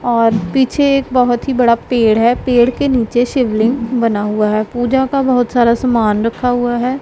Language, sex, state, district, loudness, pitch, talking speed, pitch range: Hindi, female, Punjab, Pathankot, -14 LUFS, 240 Hz, 195 wpm, 230-255 Hz